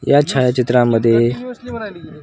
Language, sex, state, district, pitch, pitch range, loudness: Marathi, male, Maharashtra, Washim, 140 Hz, 120-190 Hz, -15 LUFS